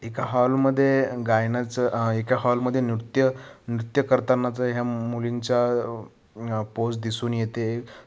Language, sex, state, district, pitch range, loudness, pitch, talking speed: Marathi, male, Maharashtra, Sindhudurg, 115-130 Hz, -24 LUFS, 120 Hz, 125 wpm